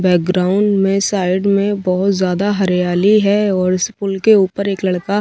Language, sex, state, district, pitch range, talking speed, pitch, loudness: Hindi, female, Bihar, Kaimur, 185-200 Hz, 175 wpm, 195 Hz, -15 LUFS